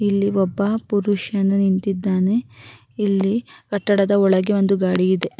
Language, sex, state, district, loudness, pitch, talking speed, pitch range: Kannada, female, Karnataka, Raichur, -19 LUFS, 195 Hz, 110 wpm, 185-205 Hz